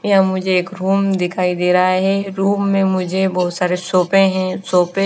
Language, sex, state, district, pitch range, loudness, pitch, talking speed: Hindi, female, Himachal Pradesh, Shimla, 180-195 Hz, -16 LUFS, 185 Hz, 215 wpm